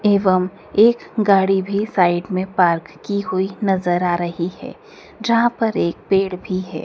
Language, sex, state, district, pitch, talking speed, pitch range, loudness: Hindi, female, Madhya Pradesh, Dhar, 190 Hz, 165 wpm, 180-205 Hz, -19 LUFS